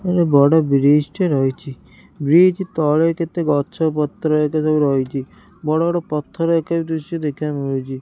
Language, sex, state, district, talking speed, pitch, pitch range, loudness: Odia, female, Odisha, Khordha, 155 wpm, 155 Hz, 145-165 Hz, -18 LUFS